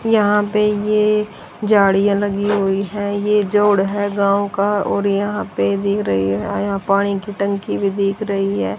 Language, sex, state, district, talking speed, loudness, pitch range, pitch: Hindi, female, Haryana, Jhajjar, 185 wpm, -18 LUFS, 195-205 Hz, 200 Hz